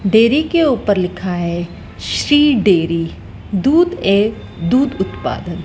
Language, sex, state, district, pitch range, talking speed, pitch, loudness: Hindi, female, Madhya Pradesh, Dhar, 180-280 Hz, 115 wpm, 205 Hz, -15 LUFS